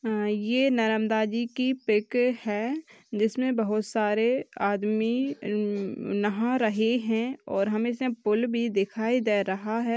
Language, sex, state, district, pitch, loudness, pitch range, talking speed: Hindi, female, Uttar Pradesh, Jyotiba Phule Nagar, 225 Hz, -27 LUFS, 210-245 Hz, 120 wpm